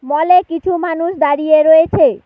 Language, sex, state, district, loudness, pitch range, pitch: Bengali, female, West Bengal, Alipurduar, -12 LUFS, 310-350 Hz, 325 Hz